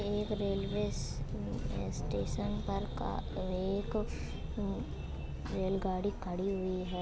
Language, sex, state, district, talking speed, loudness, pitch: Hindi, female, Uttar Pradesh, Etah, 120 wpm, -37 LUFS, 185 Hz